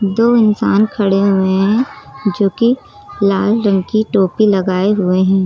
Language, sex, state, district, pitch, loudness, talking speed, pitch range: Hindi, female, Uttar Pradesh, Lucknow, 200 Hz, -14 LUFS, 145 wpm, 190-220 Hz